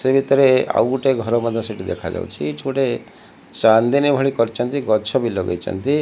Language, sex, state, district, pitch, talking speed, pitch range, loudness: Odia, male, Odisha, Malkangiri, 130 Hz, 160 wpm, 115-135 Hz, -19 LUFS